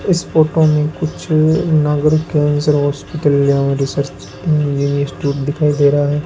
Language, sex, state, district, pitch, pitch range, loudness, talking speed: Hindi, male, Rajasthan, Bikaner, 145 Hz, 140-155 Hz, -15 LUFS, 145 wpm